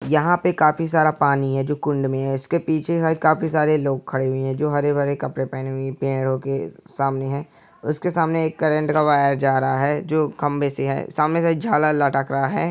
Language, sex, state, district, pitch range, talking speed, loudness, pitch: Angika, male, Bihar, Samastipur, 135-160 Hz, 215 wpm, -21 LUFS, 145 Hz